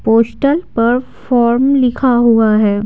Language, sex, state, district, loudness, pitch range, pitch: Hindi, female, Bihar, Patna, -13 LUFS, 225-255 Hz, 235 Hz